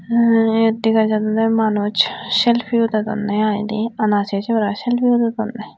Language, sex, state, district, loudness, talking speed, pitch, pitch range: Chakma, female, Tripura, Unakoti, -17 LUFS, 135 wpm, 220 Hz, 215-230 Hz